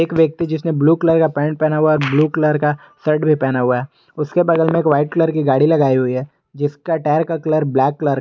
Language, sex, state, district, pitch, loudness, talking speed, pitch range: Hindi, male, Jharkhand, Garhwa, 155 Hz, -16 LUFS, 190 wpm, 145-160 Hz